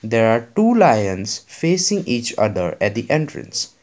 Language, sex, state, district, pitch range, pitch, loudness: English, male, Assam, Kamrup Metropolitan, 110-165 Hz, 115 Hz, -18 LUFS